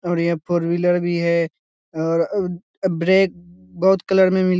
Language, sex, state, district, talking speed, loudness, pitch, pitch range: Hindi, male, Bihar, Lakhisarai, 180 wpm, -19 LUFS, 175 Hz, 170-185 Hz